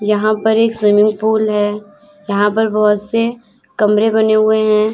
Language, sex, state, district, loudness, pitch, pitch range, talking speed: Hindi, female, Uttar Pradesh, Lalitpur, -14 LUFS, 215 Hz, 210-220 Hz, 170 wpm